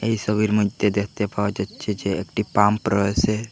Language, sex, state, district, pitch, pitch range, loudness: Bengali, male, Assam, Hailakandi, 105 Hz, 100-105 Hz, -22 LUFS